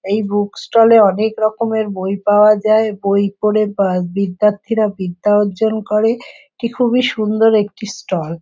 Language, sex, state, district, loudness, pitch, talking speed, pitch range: Bengali, female, West Bengal, Jhargram, -15 LUFS, 210 Hz, 170 wpm, 200-220 Hz